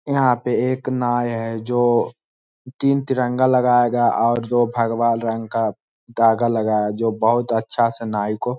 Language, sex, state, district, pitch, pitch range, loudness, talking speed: Hindi, male, Jharkhand, Sahebganj, 120 Hz, 115-125 Hz, -19 LUFS, 160 wpm